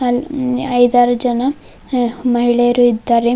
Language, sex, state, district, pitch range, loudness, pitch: Kannada, female, Karnataka, Bidar, 240-250 Hz, -15 LUFS, 245 Hz